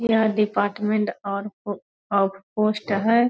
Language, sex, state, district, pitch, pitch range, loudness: Hindi, female, Bihar, Purnia, 210 Hz, 200-215 Hz, -23 LUFS